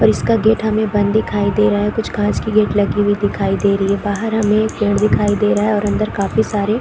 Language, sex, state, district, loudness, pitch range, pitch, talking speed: Hindi, female, Chhattisgarh, Korba, -16 LUFS, 205-215 Hz, 205 Hz, 255 wpm